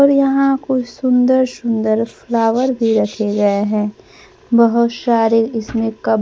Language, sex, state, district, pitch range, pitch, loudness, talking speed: Hindi, female, Bihar, Kaimur, 220-255 Hz, 230 Hz, -16 LUFS, 145 wpm